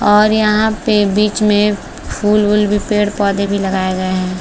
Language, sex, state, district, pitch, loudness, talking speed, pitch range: Hindi, female, Maharashtra, Chandrapur, 205 Hz, -14 LUFS, 190 wpm, 200-210 Hz